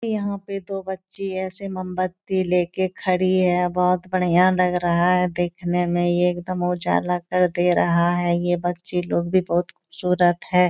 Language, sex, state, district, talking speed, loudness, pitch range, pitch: Hindi, female, Bihar, Supaul, 180 wpm, -21 LUFS, 175-185 Hz, 180 Hz